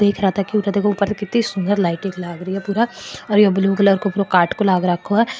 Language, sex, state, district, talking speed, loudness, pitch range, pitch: Marwari, female, Rajasthan, Churu, 210 wpm, -18 LUFS, 190-205 Hz, 200 Hz